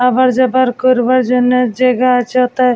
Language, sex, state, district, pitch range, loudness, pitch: Bengali, female, West Bengal, Jalpaiguri, 250-255 Hz, -12 LUFS, 250 Hz